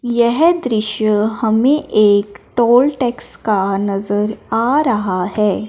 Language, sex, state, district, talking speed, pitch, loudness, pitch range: Hindi, male, Punjab, Fazilka, 115 wpm, 220 Hz, -15 LUFS, 205-245 Hz